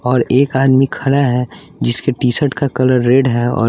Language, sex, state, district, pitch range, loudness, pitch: Hindi, male, Bihar, West Champaran, 125-135 Hz, -14 LUFS, 130 Hz